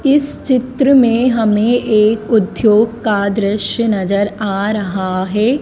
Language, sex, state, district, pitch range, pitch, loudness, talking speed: Hindi, female, Madhya Pradesh, Dhar, 205-245 Hz, 215 Hz, -14 LUFS, 130 wpm